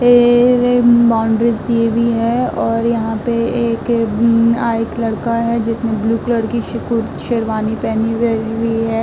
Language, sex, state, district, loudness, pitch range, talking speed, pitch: Hindi, female, Uttar Pradesh, Muzaffarnagar, -15 LUFS, 225-235 Hz, 145 wpm, 230 Hz